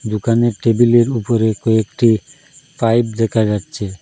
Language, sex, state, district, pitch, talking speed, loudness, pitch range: Bengali, male, Assam, Hailakandi, 115 Hz, 105 wpm, -16 LUFS, 110-120 Hz